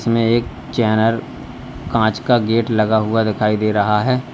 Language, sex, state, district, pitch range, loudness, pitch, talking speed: Hindi, male, Uttar Pradesh, Lalitpur, 110-115 Hz, -17 LUFS, 110 Hz, 165 wpm